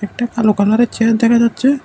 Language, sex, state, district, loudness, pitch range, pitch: Bengali, male, Tripura, West Tripura, -14 LUFS, 220-240 Hz, 230 Hz